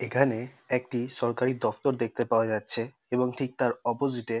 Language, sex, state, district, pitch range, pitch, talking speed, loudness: Bengali, male, West Bengal, North 24 Parganas, 115-130 Hz, 125 Hz, 165 wpm, -29 LUFS